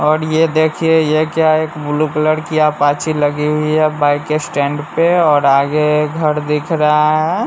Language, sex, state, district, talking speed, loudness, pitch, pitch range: Hindi, male, Bihar, West Champaran, 190 wpm, -14 LUFS, 155 Hz, 150-155 Hz